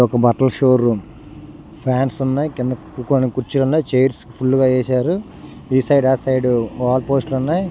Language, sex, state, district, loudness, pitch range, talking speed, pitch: Telugu, male, Andhra Pradesh, Srikakulam, -18 LUFS, 125-135 Hz, 170 wpm, 130 Hz